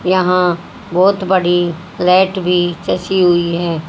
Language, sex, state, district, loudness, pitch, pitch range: Hindi, female, Haryana, Rohtak, -14 LUFS, 180 Hz, 175-185 Hz